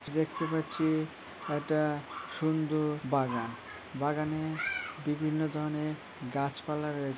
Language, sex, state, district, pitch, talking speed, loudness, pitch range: Bengali, female, West Bengal, Malda, 150 Hz, 85 wpm, -33 LUFS, 145-155 Hz